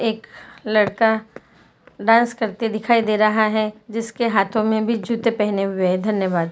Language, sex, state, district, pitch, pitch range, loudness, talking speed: Hindi, female, Jharkhand, Jamtara, 220 Hz, 210-230 Hz, -19 LUFS, 155 wpm